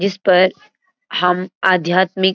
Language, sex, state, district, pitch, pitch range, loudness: Hindi, female, Uttarakhand, Uttarkashi, 185 Hz, 180-190 Hz, -16 LUFS